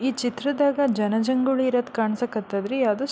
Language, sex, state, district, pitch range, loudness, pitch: Kannada, female, Karnataka, Belgaum, 220-265 Hz, -23 LUFS, 250 Hz